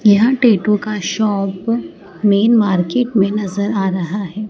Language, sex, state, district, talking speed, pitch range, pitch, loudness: Hindi, female, Madhya Pradesh, Dhar, 145 wpm, 195-215 Hz, 205 Hz, -16 LUFS